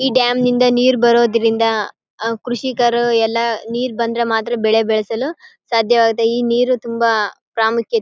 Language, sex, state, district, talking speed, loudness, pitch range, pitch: Kannada, female, Karnataka, Bellary, 135 wpm, -16 LUFS, 225-245 Hz, 235 Hz